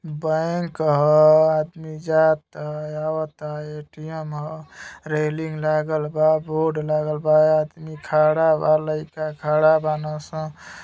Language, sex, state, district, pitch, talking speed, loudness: Bhojpuri, male, Uttar Pradesh, Gorakhpur, 155 Hz, 105 wpm, -21 LUFS